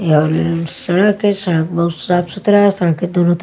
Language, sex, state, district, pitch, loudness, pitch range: Hindi, female, Maharashtra, Washim, 175 Hz, -15 LUFS, 165-195 Hz